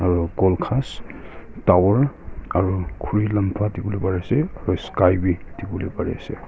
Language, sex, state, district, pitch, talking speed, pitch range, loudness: Nagamese, male, Nagaland, Kohima, 95 Hz, 150 wpm, 90-105 Hz, -22 LUFS